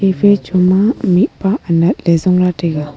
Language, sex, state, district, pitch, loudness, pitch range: Wancho, female, Arunachal Pradesh, Longding, 185 Hz, -13 LUFS, 170-200 Hz